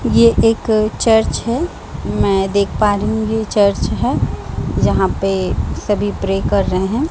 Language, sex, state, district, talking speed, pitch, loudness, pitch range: Hindi, female, Chhattisgarh, Raipur, 160 wpm, 210 Hz, -16 LUFS, 200-220 Hz